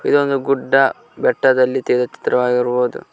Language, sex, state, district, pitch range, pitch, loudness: Kannada, male, Karnataka, Koppal, 125-135 Hz, 130 Hz, -17 LUFS